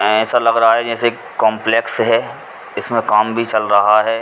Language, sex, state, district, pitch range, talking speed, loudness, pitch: Hindi, male, Uttar Pradesh, Ghazipur, 110-115 Hz, 185 wpm, -15 LUFS, 115 Hz